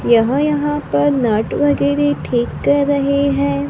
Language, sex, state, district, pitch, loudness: Hindi, female, Maharashtra, Gondia, 230 Hz, -16 LUFS